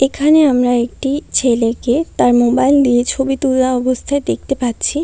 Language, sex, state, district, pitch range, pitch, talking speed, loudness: Bengali, female, West Bengal, Kolkata, 245-280 Hz, 260 Hz, 145 wpm, -14 LUFS